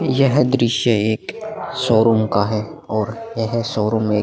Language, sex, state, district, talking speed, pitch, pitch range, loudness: Hindi, male, Bihar, Vaishali, 155 wpm, 115 Hz, 110-125 Hz, -18 LUFS